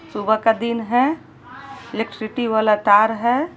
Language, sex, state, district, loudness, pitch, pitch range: Hindi, female, Jharkhand, Palamu, -19 LUFS, 225 Hz, 220-240 Hz